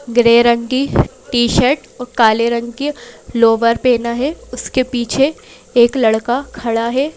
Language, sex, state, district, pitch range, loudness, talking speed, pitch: Hindi, female, Madhya Pradesh, Bhopal, 235-255 Hz, -15 LUFS, 140 wpm, 240 Hz